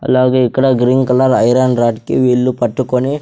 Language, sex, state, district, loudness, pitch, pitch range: Telugu, male, Andhra Pradesh, Sri Satya Sai, -13 LUFS, 130 Hz, 125-130 Hz